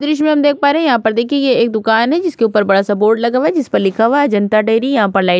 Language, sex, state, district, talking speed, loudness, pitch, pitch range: Hindi, female, Uttar Pradesh, Budaun, 355 wpm, -13 LUFS, 235 Hz, 215-285 Hz